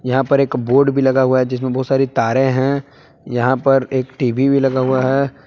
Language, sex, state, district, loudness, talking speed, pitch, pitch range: Hindi, male, Jharkhand, Palamu, -16 LUFS, 230 wpm, 130 Hz, 130-135 Hz